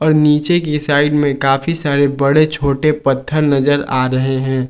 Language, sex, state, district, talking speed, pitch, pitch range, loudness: Hindi, male, Jharkhand, Garhwa, 165 wpm, 145 Hz, 135-150 Hz, -14 LUFS